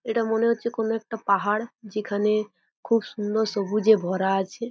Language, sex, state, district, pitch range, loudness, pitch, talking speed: Bengali, female, West Bengal, Jhargram, 205-225 Hz, -24 LUFS, 215 Hz, 150 wpm